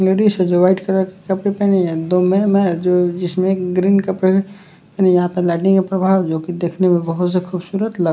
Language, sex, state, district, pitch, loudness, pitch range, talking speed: Hindi, male, Bihar, West Champaran, 185 Hz, -16 LUFS, 180-190 Hz, 220 wpm